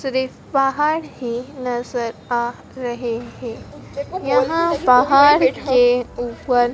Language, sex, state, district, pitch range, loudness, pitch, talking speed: Hindi, female, Madhya Pradesh, Dhar, 240-275 Hz, -19 LUFS, 250 Hz, 100 wpm